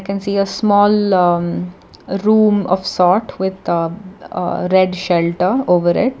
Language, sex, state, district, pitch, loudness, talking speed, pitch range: English, female, Karnataka, Bangalore, 190 Hz, -16 LUFS, 155 wpm, 180-205 Hz